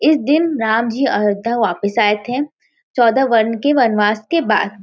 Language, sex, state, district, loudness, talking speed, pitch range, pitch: Hindi, female, Uttar Pradesh, Varanasi, -16 LUFS, 175 wpm, 210-270 Hz, 230 Hz